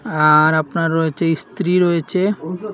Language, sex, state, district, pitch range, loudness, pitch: Bengali, male, Assam, Hailakandi, 160-180 Hz, -17 LUFS, 165 Hz